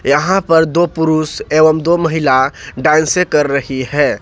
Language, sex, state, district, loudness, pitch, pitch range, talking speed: Hindi, male, Jharkhand, Ranchi, -13 LUFS, 155 Hz, 145-165 Hz, 155 wpm